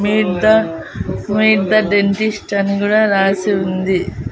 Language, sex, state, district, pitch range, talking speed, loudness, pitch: Telugu, female, Andhra Pradesh, Annamaya, 190-215 Hz, 125 wpm, -15 LUFS, 200 Hz